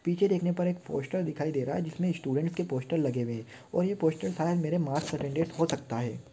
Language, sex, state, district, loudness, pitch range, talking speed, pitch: Hindi, male, Maharashtra, Pune, -31 LUFS, 140-175 Hz, 235 wpm, 160 Hz